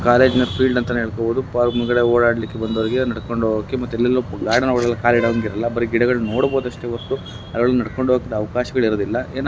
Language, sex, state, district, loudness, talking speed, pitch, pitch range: Kannada, male, Karnataka, Bellary, -19 LUFS, 170 wpm, 120 Hz, 115-125 Hz